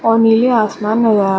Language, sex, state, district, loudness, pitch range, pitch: Hindi, female, Uttarakhand, Uttarkashi, -13 LUFS, 210-225 Hz, 225 Hz